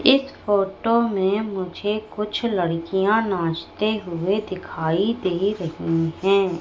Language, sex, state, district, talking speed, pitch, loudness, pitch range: Hindi, female, Madhya Pradesh, Katni, 110 wpm, 195 Hz, -22 LUFS, 175-215 Hz